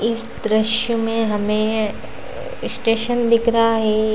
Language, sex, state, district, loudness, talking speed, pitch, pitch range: Hindi, female, Uttar Pradesh, Lalitpur, -17 LUFS, 115 wpm, 225 Hz, 215-235 Hz